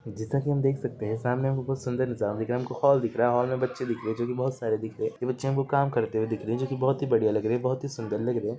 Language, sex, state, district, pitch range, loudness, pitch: Hindi, male, Jharkhand, Jamtara, 110-135 Hz, -28 LUFS, 125 Hz